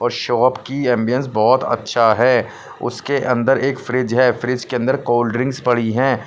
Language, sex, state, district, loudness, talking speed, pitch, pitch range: Hindi, male, Punjab, Pathankot, -17 LUFS, 180 wpm, 125 Hz, 120-130 Hz